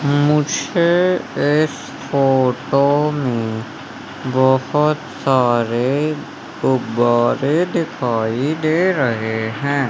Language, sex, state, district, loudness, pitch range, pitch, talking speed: Hindi, male, Madhya Pradesh, Umaria, -17 LUFS, 125-150 Hz, 140 Hz, 65 wpm